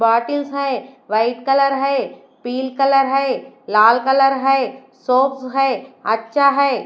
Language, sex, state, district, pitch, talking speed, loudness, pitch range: Hindi, female, Bihar, West Champaran, 270 Hz, 130 wpm, -17 LUFS, 250-275 Hz